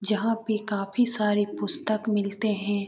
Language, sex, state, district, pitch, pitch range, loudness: Hindi, male, Bihar, Jamui, 210 Hz, 205-220 Hz, -27 LUFS